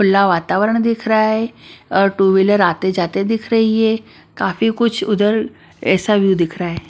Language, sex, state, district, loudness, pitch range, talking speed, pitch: Hindi, female, Maharashtra, Washim, -16 LUFS, 190-220 Hz, 185 wpm, 205 Hz